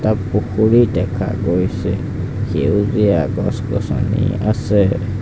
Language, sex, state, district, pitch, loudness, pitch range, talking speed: Assamese, male, Assam, Sonitpur, 105 Hz, -17 LUFS, 100-110 Hz, 80 wpm